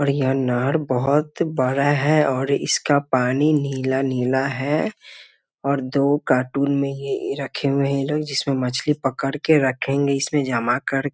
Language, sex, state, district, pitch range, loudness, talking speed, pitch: Hindi, male, Bihar, Muzaffarpur, 130-145 Hz, -21 LUFS, 165 wpm, 140 Hz